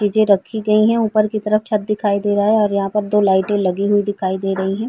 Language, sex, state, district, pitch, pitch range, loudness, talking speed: Hindi, female, Uttar Pradesh, Varanasi, 205 Hz, 200-215 Hz, -17 LUFS, 280 wpm